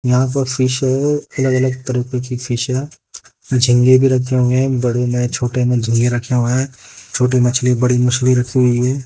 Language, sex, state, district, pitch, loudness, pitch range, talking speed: Hindi, male, Haryana, Jhajjar, 125 Hz, -16 LUFS, 125-130 Hz, 205 wpm